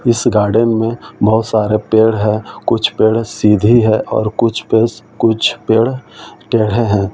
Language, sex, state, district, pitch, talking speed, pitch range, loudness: Hindi, male, Delhi, New Delhi, 110 Hz, 150 wpm, 110-115 Hz, -14 LUFS